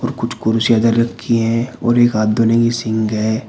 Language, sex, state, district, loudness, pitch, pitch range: Hindi, male, Uttar Pradesh, Shamli, -16 LUFS, 115 Hz, 110-120 Hz